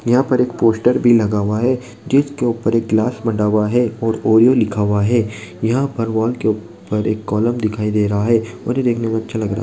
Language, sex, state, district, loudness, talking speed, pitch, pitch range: Hindi, male, Uttar Pradesh, Jalaun, -17 LUFS, 245 wpm, 115 Hz, 110-120 Hz